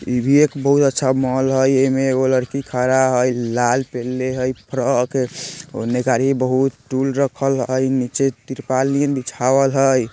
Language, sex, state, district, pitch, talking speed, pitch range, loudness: Bajjika, male, Bihar, Vaishali, 130 Hz, 165 wpm, 125-135 Hz, -18 LUFS